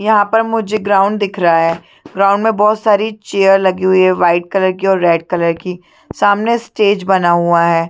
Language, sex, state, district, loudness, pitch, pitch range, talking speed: Hindi, female, Chhattisgarh, Sarguja, -13 LUFS, 195 Hz, 175-210 Hz, 205 wpm